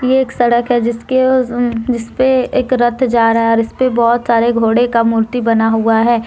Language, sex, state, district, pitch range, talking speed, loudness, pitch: Hindi, female, Jharkhand, Deoghar, 230-250 Hz, 210 wpm, -13 LUFS, 240 Hz